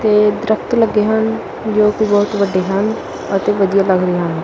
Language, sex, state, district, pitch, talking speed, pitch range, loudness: Punjabi, male, Punjab, Kapurthala, 210 Hz, 175 wpm, 195-215 Hz, -15 LUFS